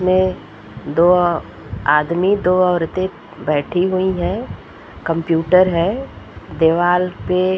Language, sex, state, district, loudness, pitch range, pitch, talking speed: Hindi, female, Uttar Pradesh, Muzaffarnagar, -17 LUFS, 150-185 Hz, 175 Hz, 95 wpm